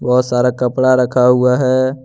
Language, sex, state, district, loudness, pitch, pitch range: Hindi, male, Jharkhand, Deoghar, -13 LUFS, 125 Hz, 125-130 Hz